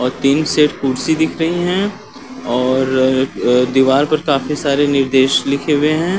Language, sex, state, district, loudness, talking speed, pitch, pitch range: Hindi, male, Uttar Pradesh, Varanasi, -15 LUFS, 165 wpm, 140 Hz, 130-155 Hz